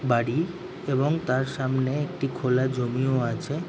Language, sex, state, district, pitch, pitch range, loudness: Bengali, male, West Bengal, Jhargram, 130 Hz, 125-150 Hz, -26 LUFS